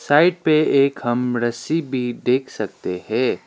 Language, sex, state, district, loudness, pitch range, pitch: Hindi, male, Sikkim, Gangtok, -20 LUFS, 120-145 Hz, 130 Hz